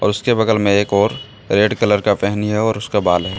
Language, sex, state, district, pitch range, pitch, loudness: Hindi, male, Jharkhand, Deoghar, 100-110 Hz, 105 Hz, -16 LUFS